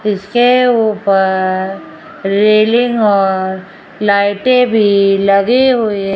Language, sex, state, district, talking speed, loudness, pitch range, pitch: Hindi, female, Rajasthan, Jaipur, 90 wpm, -12 LUFS, 195-240 Hz, 205 Hz